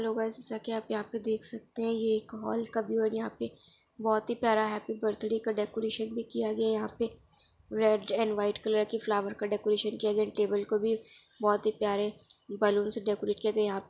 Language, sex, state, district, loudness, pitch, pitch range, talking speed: Hindi, female, Bihar, Samastipur, -31 LUFS, 220 Hz, 210-225 Hz, 240 wpm